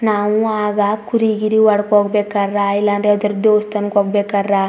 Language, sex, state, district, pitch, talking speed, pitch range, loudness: Kannada, female, Karnataka, Chamarajanagar, 210 Hz, 155 wpm, 205-215 Hz, -16 LUFS